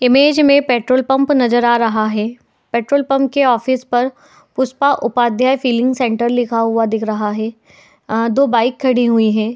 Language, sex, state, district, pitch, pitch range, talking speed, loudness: Hindi, female, Uttar Pradesh, Etah, 245 Hz, 230-265 Hz, 175 wpm, -15 LUFS